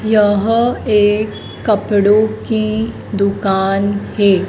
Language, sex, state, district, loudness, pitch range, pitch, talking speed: Hindi, female, Madhya Pradesh, Dhar, -15 LUFS, 200-220 Hz, 210 Hz, 80 wpm